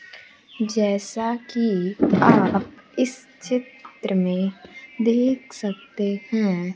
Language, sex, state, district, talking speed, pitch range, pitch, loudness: Hindi, female, Bihar, Kaimur, 80 wpm, 200-255 Hz, 225 Hz, -22 LUFS